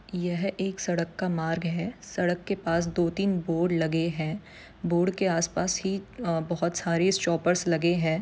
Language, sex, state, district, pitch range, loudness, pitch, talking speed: Hindi, female, Bihar, Saran, 170-190 Hz, -27 LUFS, 175 Hz, 175 wpm